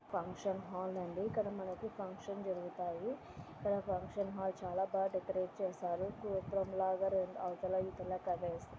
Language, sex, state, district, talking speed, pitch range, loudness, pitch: Telugu, female, Andhra Pradesh, Anantapur, 130 wpm, 185-195 Hz, -40 LUFS, 190 Hz